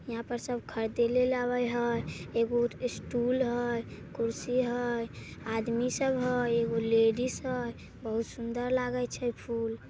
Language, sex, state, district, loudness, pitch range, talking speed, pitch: Maithili, female, Bihar, Samastipur, -31 LUFS, 230-245 Hz, 140 wpm, 240 Hz